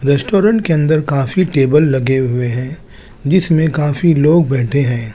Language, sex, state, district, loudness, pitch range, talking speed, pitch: Hindi, male, Chandigarh, Chandigarh, -14 LUFS, 130-160 Hz, 150 wpm, 145 Hz